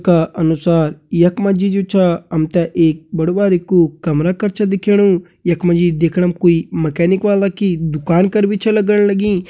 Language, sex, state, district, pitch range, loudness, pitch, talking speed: Hindi, male, Uttarakhand, Uttarkashi, 170-195 Hz, -15 LUFS, 180 Hz, 175 wpm